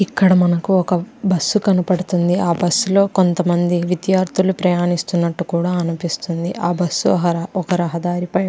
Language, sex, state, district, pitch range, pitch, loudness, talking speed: Telugu, female, Andhra Pradesh, Krishna, 175-185 Hz, 180 Hz, -17 LUFS, 135 wpm